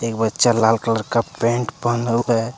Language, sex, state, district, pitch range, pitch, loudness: Hindi, male, Jharkhand, Deoghar, 115-120 Hz, 115 Hz, -19 LUFS